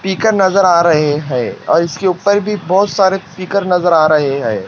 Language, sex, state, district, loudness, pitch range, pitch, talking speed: Hindi, male, Maharashtra, Washim, -13 LUFS, 160-195 Hz, 185 Hz, 205 wpm